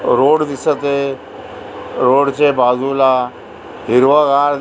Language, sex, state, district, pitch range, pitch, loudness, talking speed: Marathi, male, Maharashtra, Aurangabad, 130-145 Hz, 140 Hz, -14 LUFS, 80 wpm